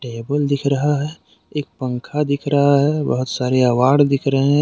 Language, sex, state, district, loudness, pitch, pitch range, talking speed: Hindi, male, Jharkhand, Deoghar, -18 LUFS, 140 Hz, 130-145 Hz, 195 wpm